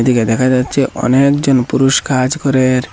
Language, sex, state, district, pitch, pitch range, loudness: Bengali, male, Assam, Hailakandi, 130 Hz, 125-135 Hz, -13 LUFS